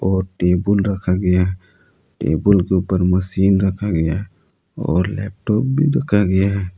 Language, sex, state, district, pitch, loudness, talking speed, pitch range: Hindi, male, Jharkhand, Palamu, 95 Hz, -18 LUFS, 160 wpm, 90-100 Hz